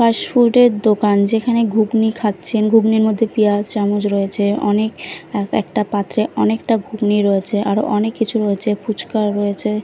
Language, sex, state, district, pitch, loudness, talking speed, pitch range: Bengali, female, Bihar, Katihar, 215 Hz, -17 LUFS, 145 wpm, 205-225 Hz